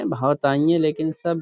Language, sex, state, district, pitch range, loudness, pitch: Urdu, male, Uttar Pradesh, Budaun, 145-165 Hz, -21 LUFS, 155 Hz